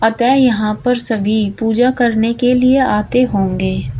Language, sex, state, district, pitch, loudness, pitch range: Hindi, female, Uttar Pradesh, Shamli, 225 Hz, -14 LUFS, 210-250 Hz